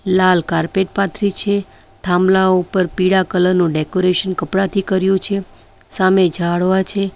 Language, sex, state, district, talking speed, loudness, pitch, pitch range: Gujarati, female, Gujarat, Valsad, 135 wpm, -15 LUFS, 185 Hz, 180-195 Hz